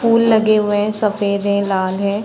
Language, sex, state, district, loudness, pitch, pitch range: Hindi, female, Chhattisgarh, Balrampur, -16 LUFS, 205 Hz, 200-215 Hz